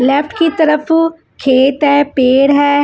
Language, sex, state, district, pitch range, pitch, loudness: Hindi, female, Punjab, Fazilka, 275-315 Hz, 285 Hz, -12 LUFS